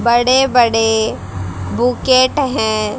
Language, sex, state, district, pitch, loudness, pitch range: Hindi, female, Haryana, Rohtak, 235 Hz, -14 LUFS, 215-255 Hz